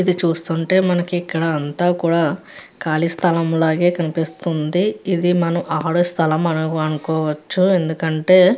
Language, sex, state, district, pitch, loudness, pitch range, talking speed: Telugu, female, Andhra Pradesh, Chittoor, 165 Hz, -18 LUFS, 160-175 Hz, 105 wpm